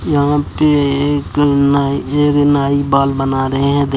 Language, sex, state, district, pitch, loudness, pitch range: Maithili, male, Bihar, Bhagalpur, 140 Hz, -14 LUFS, 140-145 Hz